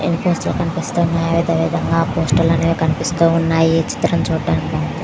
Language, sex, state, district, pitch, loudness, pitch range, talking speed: Telugu, female, Andhra Pradesh, Visakhapatnam, 165 Hz, -17 LUFS, 165-170 Hz, 145 wpm